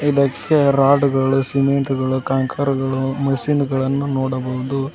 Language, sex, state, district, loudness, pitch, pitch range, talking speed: Kannada, male, Karnataka, Koppal, -18 LUFS, 135 Hz, 130-140 Hz, 110 wpm